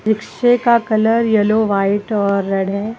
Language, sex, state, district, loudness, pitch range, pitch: Hindi, female, Uttar Pradesh, Lucknow, -16 LUFS, 200-225 Hz, 215 Hz